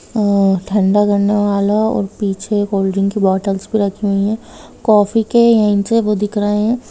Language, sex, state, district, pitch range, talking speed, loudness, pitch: Hindi, female, Jharkhand, Jamtara, 200-215 Hz, 190 wpm, -15 LUFS, 205 Hz